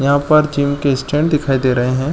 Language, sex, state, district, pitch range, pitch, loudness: Hindi, male, Jharkhand, Jamtara, 135-150 Hz, 140 Hz, -15 LUFS